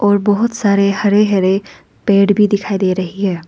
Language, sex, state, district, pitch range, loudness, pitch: Hindi, female, Arunachal Pradesh, Lower Dibang Valley, 195-205 Hz, -14 LUFS, 200 Hz